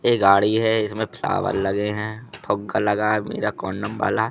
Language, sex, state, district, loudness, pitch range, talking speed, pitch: Hindi, male, Madhya Pradesh, Katni, -22 LUFS, 105-110 Hz, 165 wpm, 105 Hz